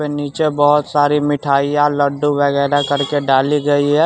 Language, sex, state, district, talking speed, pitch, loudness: Hindi, male, Bihar, West Champaran, 145 wpm, 145 Hz, -15 LUFS